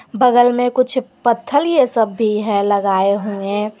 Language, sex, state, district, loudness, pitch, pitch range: Hindi, female, Jharkhand, Garhwa, -16 LUFS, 225 Hz, 205-250 Hz